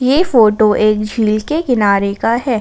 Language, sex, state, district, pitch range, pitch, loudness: Hindi, female, Jharkhand, Garhwa, 215-250 Hz, 220 Hz, -13 LUFS